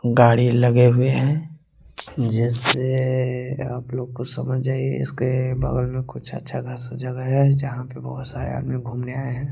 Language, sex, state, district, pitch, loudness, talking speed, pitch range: Hindi, male, Chandigarh, Chandigarh, 125 Hz, -22 LUFS, 165 wpm, 125-130 Hz